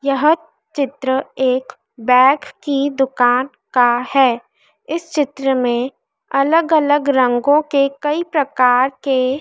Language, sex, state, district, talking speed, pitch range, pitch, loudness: Hindi, female, Madhya Pradesh, Dhar, 115 wpm, 255-295 Hz, 275 Hz, -16 LUFS